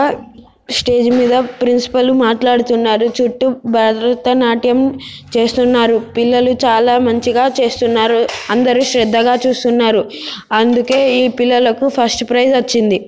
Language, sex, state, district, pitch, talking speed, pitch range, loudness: Telugu, female, Telangana, Nalgonda, 245 Hz, 100 wpm, 230-250 Hz, -13 LUFS